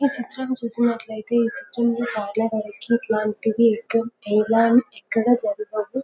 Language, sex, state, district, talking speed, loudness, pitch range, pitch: Telugu, female, Telangana, Karimnagar, 110 wpm, -22 LUFS, 215-235 Hz, 230 Hz